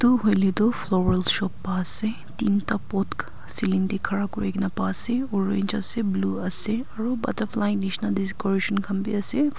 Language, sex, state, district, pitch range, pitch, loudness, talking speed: Nagamese, female, Nagaland, Kohima, 195-220 Hz, 200 Hz, -20 LUFS, 175 wpm